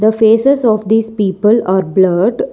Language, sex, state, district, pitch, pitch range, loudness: English, female, Telangana, Hyderabad, 220 Hz, 190-225 Hz, -12 LUFS